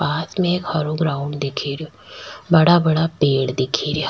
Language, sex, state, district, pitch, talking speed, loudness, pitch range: Rajasthani, female, Rajasthan, Nagaur, 155 Hz, 175 wpm, -19 LUFS, 140-165 Hz